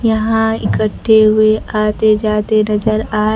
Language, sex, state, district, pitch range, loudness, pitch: Hindi, female, Bihar, Kaimur, 215-220 Hz, -13 LUFS, 215 Hz